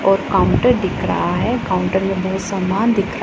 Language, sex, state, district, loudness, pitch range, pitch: Hindi, female, Punjab, Pathankot, -17 LUFS, 190-195 Hz, 195 Hz